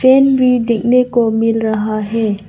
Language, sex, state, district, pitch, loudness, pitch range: Hindi, female, Arunachal Pradesh, Lower Dibang Valley, 230 Hz, -14 LUFS, 220-250 Hz